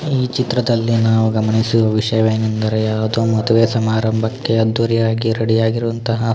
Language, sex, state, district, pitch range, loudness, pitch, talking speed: Kannada, male, Karnataka, Shimoga, 110-115 Hz, -16 LUFS, 115 Hz, 115 wpm